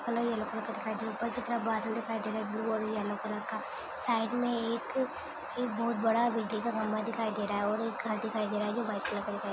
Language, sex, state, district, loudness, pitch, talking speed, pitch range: Hindi, female, Chhattisgarh, Kabirdham, -33 LUFS, 220 Hz, 240 wpm, 215-235 Hz